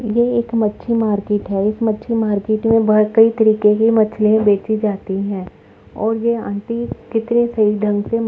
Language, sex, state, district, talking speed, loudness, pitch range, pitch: Hindi, female, Uttar Pradesh, Muzaffarnagar, 190 wpm, -17 LUFS, 210-225 Hz, 215 Hz